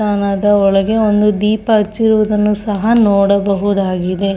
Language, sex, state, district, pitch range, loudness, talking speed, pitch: Kannada, female, Karnataka, Shimoga, 200-215 Hz, -13 LUFS, 95 wpm, 205 Hz